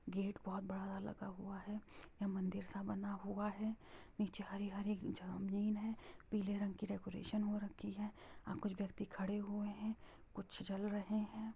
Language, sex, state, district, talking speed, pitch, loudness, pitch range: Hindi, female, Bihar, Sitamarhi, 180 wpm, 205 Hz, -45 LUFS, 195-210 Hz